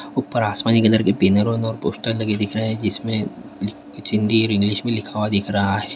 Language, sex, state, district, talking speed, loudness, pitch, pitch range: Hindi, male, Bihar, Darbhanga, 220 wpm, -20 LUFS, 105 Hz, 105-115 Hz